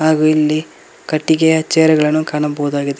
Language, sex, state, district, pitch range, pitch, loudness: Kannada, male, Karnataka, Koppal, 150-155 Hz, 155 Hz, -15 LUFS